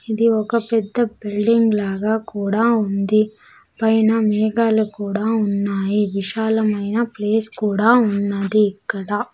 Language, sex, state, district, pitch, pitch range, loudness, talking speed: Telugu, female, Andhra Pradesh, Sri Satya Sai, 215 Hz, 205-225 Hz, -19 LUFS, 105 wpm